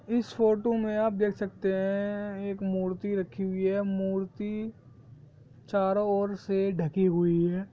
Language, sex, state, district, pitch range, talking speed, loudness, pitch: Hindi, male, Jharkhand, Sahebganj, 185-205 Hz, 145 wpm, -29 LUFS, 195 Hz